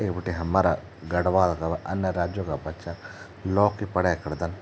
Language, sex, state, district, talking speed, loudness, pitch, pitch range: Garhwali, male, Uttarakhand, Tehri Garhwal, 170 wpm, -26 LUFS, 90 Hz, 85-95 Hz